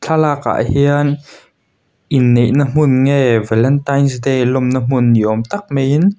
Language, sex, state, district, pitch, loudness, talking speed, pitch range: Mizo, male, Mizoram, Aizawl, 135 Hz, -14 LUFS, 145 wpm, 125-145 Hz